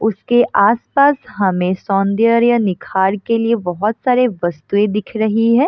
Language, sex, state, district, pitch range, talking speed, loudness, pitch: Hindi, female, Bihar, East Champaran, 195-235 Hz, 135 wpm, -15 LUFS, 220 Hz